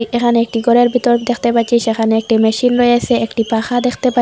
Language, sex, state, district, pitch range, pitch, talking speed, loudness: Bengali, female, Assam, Hailakandi, 225-245 Hz, 235 Hz, 200 wpm, -14 LUFS